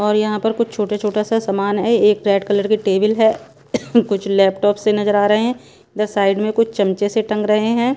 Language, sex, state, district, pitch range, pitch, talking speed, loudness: Hindi, female, Punjab, Pathankot, 205-220 Hz, 210 Hz, 225 wpm, -17 LUFS